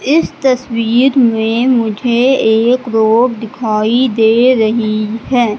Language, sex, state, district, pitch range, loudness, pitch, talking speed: Hindi, female, Madhya Pradesh, Katni, 220-255 Hz, -12 LUFS, 235 Hz, 105 wpm